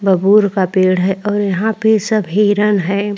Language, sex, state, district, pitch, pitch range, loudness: Hindi, female, Chhattisgarh, Korba, 205 Hz, 190-210 Hz, -14 LUFS